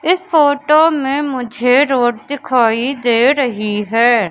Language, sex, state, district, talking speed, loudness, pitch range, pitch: Hindi, female, Madhya Pradesh, Katni, 125 wpm, -14 LUFS, 235-285 Hz, 260 Hz